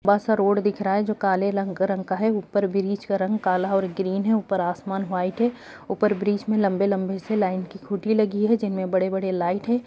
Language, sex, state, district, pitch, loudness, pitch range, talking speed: Hindi, female, Bihar, Saharsa, 195 Hz, -24 LUFS, 190-210 Hz, 225 wpm